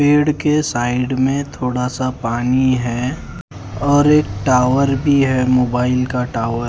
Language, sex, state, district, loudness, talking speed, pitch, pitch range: Hindi, male, Haryana, Charkhi Dadri, -16 LUFS, 150 wpm, 130 Hz, 125-140 Hz